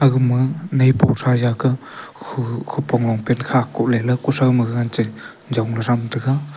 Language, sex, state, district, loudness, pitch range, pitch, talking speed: Wancho, male, Arunachal Pradesh, Longding, -19 LUFS, 120-130 Hz, 125 Hz, 155 wpm